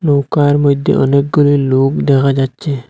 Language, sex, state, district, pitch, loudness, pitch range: Bengali, male, Assam, Hailakandi, 140 Hz, -13 LUFS, 135-145 Hz